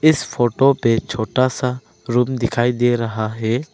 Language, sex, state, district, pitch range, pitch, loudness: Hindi, male, Arunachal Pradesh, Lower Dibang Valley, 115-130 Hz, 120 Hz, -19 LUFS